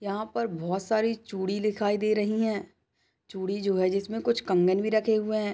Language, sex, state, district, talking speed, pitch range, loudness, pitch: Hindi, female, Uttar Pradesh, Budaun, 205 wpm, 195-220 Hz, -27 LUFS, 210 Hz